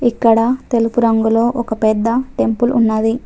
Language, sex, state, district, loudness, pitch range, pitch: Telugu, female, Telangana, Adilabad, -15 LUFS, 225-240 Hz, 230 Hz